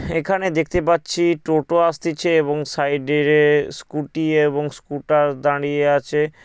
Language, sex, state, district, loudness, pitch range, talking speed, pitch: Bengali, male, West Bengal, Paschim Medinipur, -19 LUFS, 145-165 Hz, 110 wpm, 150 Hz